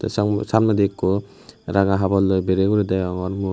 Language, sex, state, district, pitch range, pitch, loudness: Chakma, male, Tripura, West Tripura, 95-105 Hz, 100 Hz, -20 LUFS